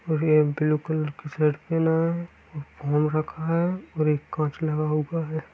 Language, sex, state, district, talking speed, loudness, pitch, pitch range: Hindi, male, Bihar, Kishanganj, 185 wpm, -25 LUFS, 155 Hz, 150-165 Hz